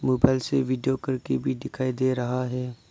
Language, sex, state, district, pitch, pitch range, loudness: Hindi, male, Arunachal Pradesh, Lower Dibang Valley, 130 Hz, 125-130 Hz, -26 LUFS